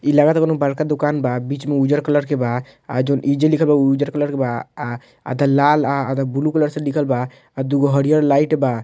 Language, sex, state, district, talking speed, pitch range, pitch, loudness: Bhojpuri, male, Bihar, Muzaffarpur, 260 wpm, 135-150 Hz, 140 Hz, -18 LUFS